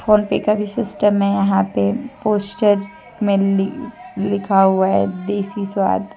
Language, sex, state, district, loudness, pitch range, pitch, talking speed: Hindi, female, Jharkhand, Deoghar, -18 LUFS, 195-210 Hz, 200 Hz, 135 wpm